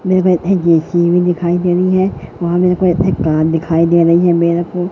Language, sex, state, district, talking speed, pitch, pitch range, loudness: Hindi, male, Madhya Pradesh, Katni, 205 wpm, 175 Hz, 170-180 Hz, -13 LUFS